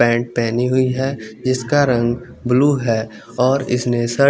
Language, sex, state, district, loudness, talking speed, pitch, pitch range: Hindi, male, Chandigarh, Chandigarh, -18 LUFS, 165 wpm, 125 Hz, 120-130 Hz